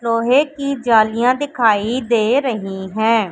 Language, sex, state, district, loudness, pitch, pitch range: Hindi, female, Madhya Pradesh, Katni, -16 LUFS, 230 Hz, 220-260 Hz